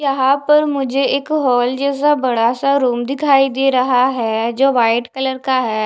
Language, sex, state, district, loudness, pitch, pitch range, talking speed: Hindi, female, Maharashtra, Mumbai Suburban, -15 LUFS, 265 Hz, 245-275 Hz, 185 wpm